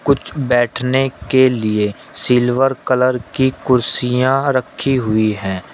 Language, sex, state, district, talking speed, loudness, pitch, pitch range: Hindi, male, Uttar Pradesh, Shamli, 115 wpm, -16 LUFS, 125 Hz, 115-130 Hz